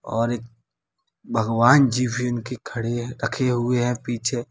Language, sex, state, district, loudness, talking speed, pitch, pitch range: Hindi, male, Uttar Pradesh, Lalitpur, -22 LUFS, 160 wpm, 120 Hz, 115-125 Hz